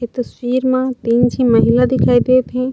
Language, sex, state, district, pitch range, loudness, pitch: Chhattisgarhi, female, Chhattisgarh, Raigarh, 240-255 Hz, -15 LUFS, 250 Hz